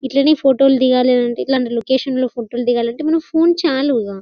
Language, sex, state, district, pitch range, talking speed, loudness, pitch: Telugu, female, Telangana, Karimnagar, 245-275 Hz, 200 wpm, -16 LUFS, 260 Hz